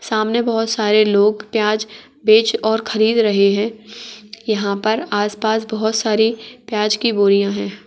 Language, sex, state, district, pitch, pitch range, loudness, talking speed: Hindi, female, Uttar Pradesh, Etah, 215 Hz, 210-225 Hz, -17 LUFS, 145 wpm